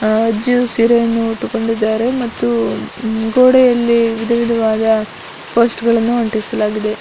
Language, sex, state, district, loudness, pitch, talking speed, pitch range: Kannada, female, Karnataka, Dakshina Kannada, -14 LUFS, 230 Hz, 95 wpm, 220-235 Hz